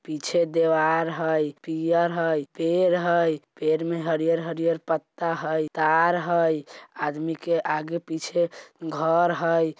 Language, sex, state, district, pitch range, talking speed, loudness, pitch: Bajjika, male, Bihar, Vaishali, 155-170 Hz, 135 wpm, -24 LUFS, 165 Hz